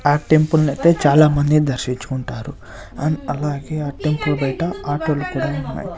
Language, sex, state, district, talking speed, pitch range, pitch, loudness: Telugu, male, Andhra Pradesh, Sri Satya Sai, 150 wpm, 140-155 Hz, 145 Hz, -19 LUFS